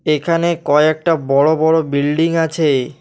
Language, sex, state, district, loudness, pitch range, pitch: Bengali, male, West Bengal, Alipurduar, -15 LUFS, 145-165 Hz, 155 Hz